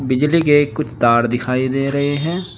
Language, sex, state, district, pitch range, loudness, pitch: Hindi, male, Uttar Pradesh, Saharanpur, 125-150 Hz, -16 LUFS, 140 Hz